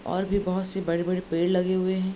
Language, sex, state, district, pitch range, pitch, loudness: Hindi, female, Bihar, Darbhanga, 180-190 Hz, 185 Hz, -26 LUFS